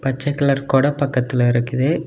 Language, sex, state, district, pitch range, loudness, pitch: Tamil, male, Tamil Nadu, Kanyakumari, 130-140 Hz, -18 LUFS, 135 Hz